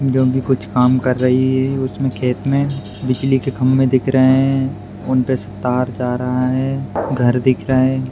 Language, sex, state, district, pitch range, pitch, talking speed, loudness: Hindi, male, Bihar, Madhepura, 125-130 Hz, 130 Hz, 200 wpm, -17 LUFS